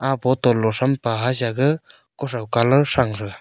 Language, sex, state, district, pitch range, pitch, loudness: Wancho, male, Arunachal Pradesh, Longding, 115-135 Hz, 125 Hz, -20 LUFS